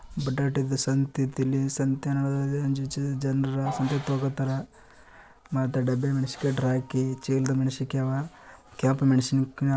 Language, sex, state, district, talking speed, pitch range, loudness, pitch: Kannada, male, Karnataka, Bijapur, 125 wpm, 130-140 Hz, -27 LUFS, 135 Hz